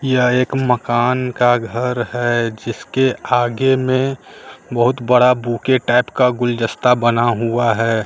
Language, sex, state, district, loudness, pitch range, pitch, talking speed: Hindi, male, Bihar, Katihar, -16 LUFS, 120-125 Hz, 120 Hz, 135 wpm